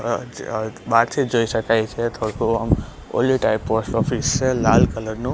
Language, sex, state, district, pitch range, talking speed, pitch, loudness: Gujarati, male, Gujarat, Gandhinagar, 110-125 Hz, 145 wpm, 115 Hz, -20 LUFS